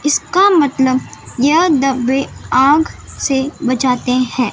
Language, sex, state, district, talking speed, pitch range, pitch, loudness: Hindi, female, Madhya Pradesh, Dhar, 105 wpm, 255-295 Hz, 270 Hz, -14 LUFS